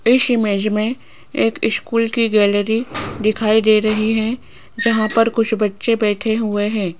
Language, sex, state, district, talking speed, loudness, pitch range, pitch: Hindi, female, Rajasthan, Jaipur, 155 wpm, -17 LUFS, 210-230 Hz, 220 Hz